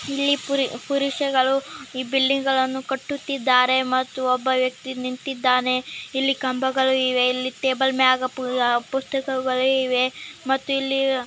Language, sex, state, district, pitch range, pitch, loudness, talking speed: Kannada, female, Karnataka, Chamarajanagar, 255-270 Hz, 260 Hz, -22 LUFS, 85 wpm